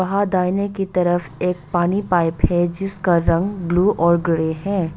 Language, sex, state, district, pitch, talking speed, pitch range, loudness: Hindi, female, Arunachal Pradesh, Longding, 180 Hz, 170 wpm, 170-195 Hz, -19 LUFS